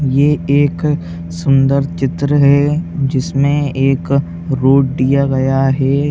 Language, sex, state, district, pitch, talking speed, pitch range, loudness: Hindi, male, Uttar Pradesh, Etah, 140 Hz, 110 wpm, 135-145 Hz, -14 LUFS